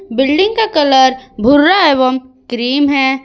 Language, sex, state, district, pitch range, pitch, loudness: Hindi, female, Jharkhand, Ranchi, 260-290 Hz, 265 Hz, -11 LUFS